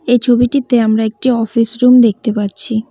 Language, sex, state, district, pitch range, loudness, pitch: Bengali, female, West Bengal, Cooch Behar, 220-250 Hz, -13 LUFS, 235 Hz